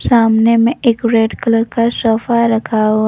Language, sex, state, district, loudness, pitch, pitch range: Hindi, female, Jharkhand, Deoghar, -13 LUFS, 230 Hz, 225-235 Hz